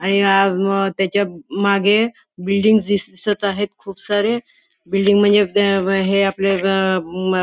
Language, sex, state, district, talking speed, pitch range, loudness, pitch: Marathi, female, Maharashtra, Nagpur, 115 wpm, 195-205 Hz, -17 LUFS, 195 Hz